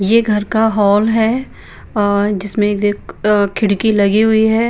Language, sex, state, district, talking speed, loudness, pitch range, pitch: Hindi, female, Bihar, Patna, 165 wpm, -14 LUFS, 205-220 Hz, 210 Hz